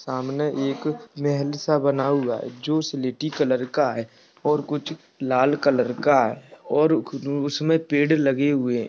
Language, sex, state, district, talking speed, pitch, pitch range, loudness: Hindi, male, Uttar Pradesh, Budaun, 160 wpm, 145 Hz, 130-150 Hz, -23 LUFS